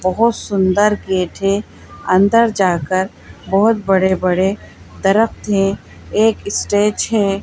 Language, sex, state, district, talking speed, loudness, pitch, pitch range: Hindi, female, Madhya Pradesh, Bhopal, 105 wpm, -16 LUFS, 195 Hz, 190-210 Hz